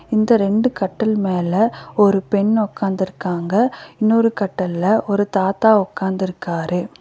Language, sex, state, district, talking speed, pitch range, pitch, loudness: Tamil, female, Tamil Nadu, Nilgiris, 105 wpm, 185-220 Hz, 200 Hz, -18 LUFS